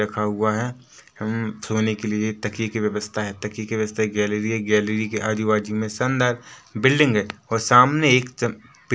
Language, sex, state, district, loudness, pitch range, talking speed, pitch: Hindi, male, Chhattisgarh, Rajnandgaon, -22 LUFS, 105-120 Hz, 200 wpm, 110 Hz